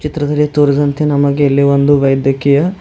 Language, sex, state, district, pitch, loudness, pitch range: Kannada, male, Karnataka, Bidar, 145 Hz, -12 LUFS, 140-150 Hz